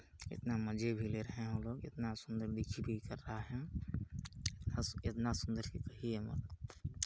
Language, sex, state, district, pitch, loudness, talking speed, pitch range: Hindi, male, Chhattisgarh, Balrampur, 110 Hz, -43 LUFS, 160 wpm, 105-115 Hz